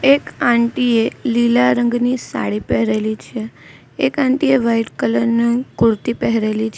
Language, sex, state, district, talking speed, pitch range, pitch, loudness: Gujarati, female, Gujarat, Valsad, 150 wpm, 220-250 Hz, 235 Hz, -17 LUFS